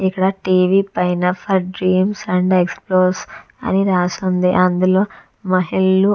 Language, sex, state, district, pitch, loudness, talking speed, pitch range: Telugu, female, Andhra Pradesh, Visakhapatnam, 185 Hz, -17 LUFS, 135 wpm, 180-190 Hz